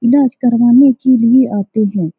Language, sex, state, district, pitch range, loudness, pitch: Hindi, female, Bihar, Saran, 215-260 Hz, -11 LUFS, 240 Hz